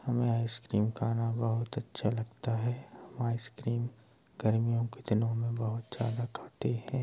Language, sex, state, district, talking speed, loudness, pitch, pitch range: Hindi, male, Uttar Pradesh, Hamirpur, 155 wpm, -33 LUFS, 115 Hz, 115-120 Hz